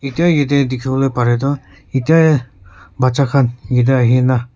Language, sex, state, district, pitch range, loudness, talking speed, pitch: Nagamese, male, Nagaland, Kohima, 120-140 Hz, -15 LUFS, 145 wpm, 130 Hz